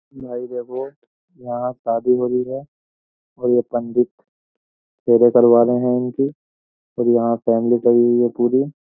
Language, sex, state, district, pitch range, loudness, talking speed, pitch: Hindi, male, Uttar Pradesh, Jyotiba Phule Nagar, 120-125 Hz, -18 LUFS, 150 wpm, 120 Hz